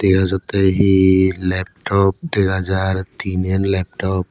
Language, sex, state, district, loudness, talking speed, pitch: Chakma, male, Tripura, West Tripura, -17 LUFS, 125 wpm, 95 Hz